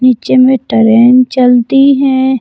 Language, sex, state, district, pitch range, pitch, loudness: Hindi, female, Jharkhand, Palamu, 245-265 Hz, 255 Hz, -8 LUFS